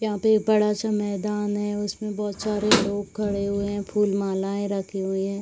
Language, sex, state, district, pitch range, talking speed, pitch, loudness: Hindi, female, Bihar, Saharsa, 200-210 Hz, 210 wpm, 205 Hz, -24 LUFS